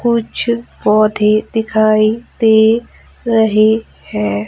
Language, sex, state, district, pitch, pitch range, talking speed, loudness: Hindi, female, Madhya Pradesh, Umaria, 220 Hz, 215-230 Hz, 80 wpm, -13 LUFS